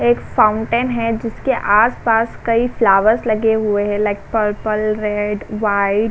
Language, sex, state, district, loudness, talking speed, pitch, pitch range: Hindi, female, Uttar Pradesh, Jalaun, -17 LUFS, 145 wpm, 215 Hz, 205-225 Hz